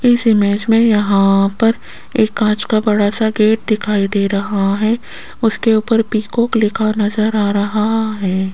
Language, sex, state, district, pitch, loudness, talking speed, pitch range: Hindi, female, Rajasthan, Jaipur, 215 Hz, -15 LUFS, 160 wpm, 205-225 Hz